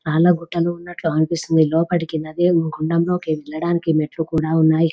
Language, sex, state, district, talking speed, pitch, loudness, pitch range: Telugu, female, Telangana, Nalgonda, 135 wpm, 165 Hz, -19 LUFS, 160-170 Hz